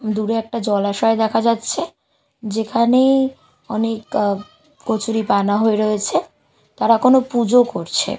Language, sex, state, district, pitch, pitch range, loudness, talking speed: Bengali, female, Bihar, Katihar, 225 Hz, 210-240 Hz, -18 LUFS, 110 wpm